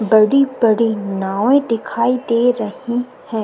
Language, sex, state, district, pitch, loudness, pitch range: Hindi, female, Uttar Pradesh, Jyotiba Phule Nagar, 230 Hz, -16 LUFS, 215-250 Hz